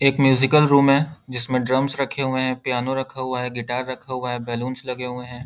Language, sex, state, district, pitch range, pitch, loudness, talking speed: Hindi, male, Bihar, Lakhisarai, 125-135 Hz, 130 Hz, -21 LUFS, 230 wpm